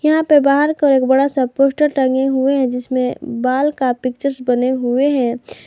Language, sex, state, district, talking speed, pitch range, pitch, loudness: Hindi, female, Jharkhand, Garhwa, 190 wpm, 255-280 Hz, 265 Hz, -16 LUFS